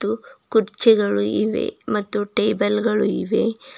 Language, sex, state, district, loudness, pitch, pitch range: Kannada, female, Karnataka, Bidar, -20 LUFS, 210 Hz, 205-220 Hz